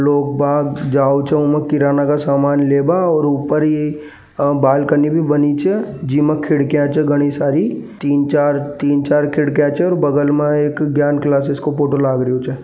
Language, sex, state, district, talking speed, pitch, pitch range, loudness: Marwari, male, Rajasthan, Nagaur, 165 wpm, 145 Hz, 140-150 Hz, -15 LUFS